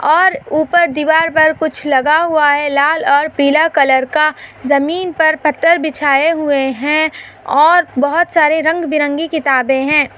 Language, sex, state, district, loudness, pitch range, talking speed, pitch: Hindi, female, Maharashtra, Pune, -13 LUFS, 285-320 Hz, 145 wpm, 305 Hz